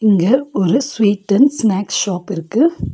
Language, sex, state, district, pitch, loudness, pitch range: Tamil, female, Tamil Nadu, Nilgiris, 210 Hz, -15 LUFS, 195-265 Hz